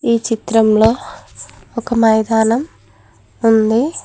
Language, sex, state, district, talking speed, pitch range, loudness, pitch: Telugu, female, Telangana, Mahabubabad, 75 wpm, 220-235 Hz, -14 LUFS, 225 Hz